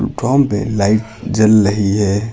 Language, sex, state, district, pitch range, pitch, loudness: Hindi, male, Uttar Pradesh, Lucknow, 105-115 Hz, 110 Hz, -14 LUFS